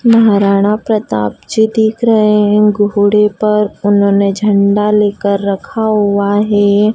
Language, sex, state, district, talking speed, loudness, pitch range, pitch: Hindi, female, Madhya Pradesh, Dhar, 120 wpm, -11 LUFS, 200-215 Hz, 210 Hz